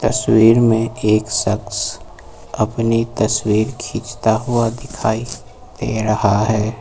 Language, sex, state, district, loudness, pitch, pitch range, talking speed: Hindi, male, Uttar Pradesh, Lucknow, -17 LUFS, 110 Hz, 110-115 Hz, 105 wpm